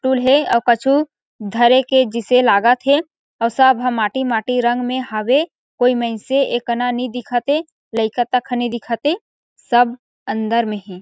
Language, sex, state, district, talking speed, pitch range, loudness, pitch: Chhattisgarhi, female, Chhattisgarh, Sarguja, 175 wpm, 235-260 Hz, -17 LUFS, 245 Hz